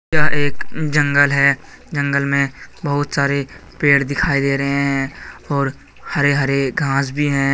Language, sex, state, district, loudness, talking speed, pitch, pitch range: Hindi, male, Jharkhand, Deoghar, -18 LUFS, 150 wpm, 140 Hz, 140-145 Hz